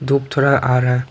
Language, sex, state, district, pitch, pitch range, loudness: Hindi, male, Tripura, Dhalai, 135 Hz, 125-140 Hz, -16 LUFS